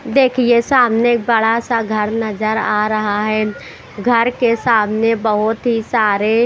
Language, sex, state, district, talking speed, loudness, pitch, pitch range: Hindi, female, Bihar, West Champaran, 140 wpm, -15 LUFS, 225 Hz, 215-235 Hz